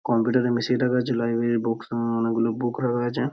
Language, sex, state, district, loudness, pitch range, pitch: Bengali, male, West Bengal, Purulia, -24 LUFS, 115-125 Hz, 120 Hz